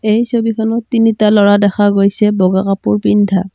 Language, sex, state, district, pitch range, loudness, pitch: Assamese, female, Assam, Kamrup Metropolitan, 195-220 Hz, -12 LUFS, 205 Hz